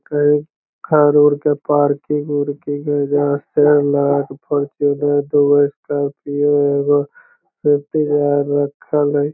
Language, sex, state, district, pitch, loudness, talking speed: Magahi, male, Bihar, Lakhisarai, 145 Hz, -16 LUFS, 105 wpm